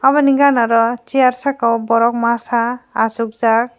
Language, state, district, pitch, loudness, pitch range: Kokborok, Tripura, Dhalai, 235 Hz, -15 LUFS, 230-255 Hz